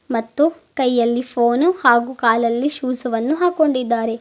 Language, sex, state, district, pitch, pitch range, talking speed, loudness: Kannada, female, Karnataka, Bidar, 250 Hz, 235-295 Hz, 115 wpm, -18 LUFS